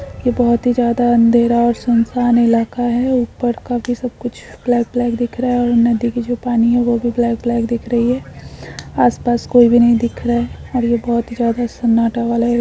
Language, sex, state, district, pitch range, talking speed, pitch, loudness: Hindi, female, Chhattisgarh, Bilaspur, 235-245 Hz, 220 wpm, 240 Hz, -16 LUFS